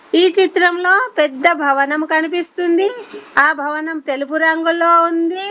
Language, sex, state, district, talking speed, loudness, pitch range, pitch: Telugu, female, Telangana, Komaram Bheem, 110 wpm, -15 LUFS, 310-360 Hz, 335 Hz